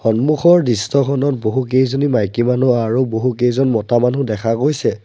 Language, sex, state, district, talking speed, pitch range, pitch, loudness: Assamese, male, Assam, Sonitpur, 130 wpm, 115-140 Hz, 125 Hz, -16 LUFS